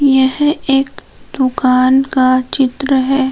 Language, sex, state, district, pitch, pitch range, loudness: Hindi, female, Jharkhand, Palamu, 265 Hz, 255-275 Hz, -13 LUFS